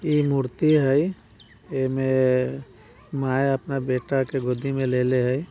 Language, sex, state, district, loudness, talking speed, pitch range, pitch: Bajjika, male, Bihar, Vaishali, -23 LUFS, 150 wpm, 125-140 Hz, 130 Hz